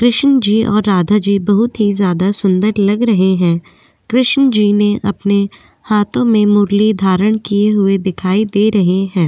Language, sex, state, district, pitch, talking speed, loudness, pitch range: Hindi, female, Goa, North and South Goa, 205 Hz, 170 wpm, -13 LUFS, 195-215 Hz